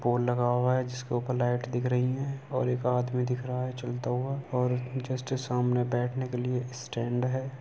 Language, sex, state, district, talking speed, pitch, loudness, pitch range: Hindi, male, Uttar Pradesh, Etah, 215 wpm, 125 Hz, -30 LUFS, 125-130 Hz